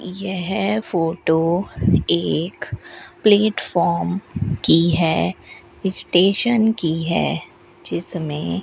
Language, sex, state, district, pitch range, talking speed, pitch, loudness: Hindi, female, Rajasthan, Bikaner, 165-195 Hz, 75 wpm, 175 Hz, -19 LUFS